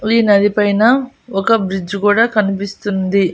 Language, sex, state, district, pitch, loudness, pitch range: Telugu, female, Andhra Pradesh, Annamaya, 205 Hz, -15 LUFS, 195-225 Hz